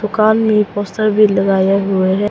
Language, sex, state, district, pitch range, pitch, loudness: Hindi, female, Arunachal Pradesh, Papum Pare, 195-215 Hz, 205 Hz, -14 LUFS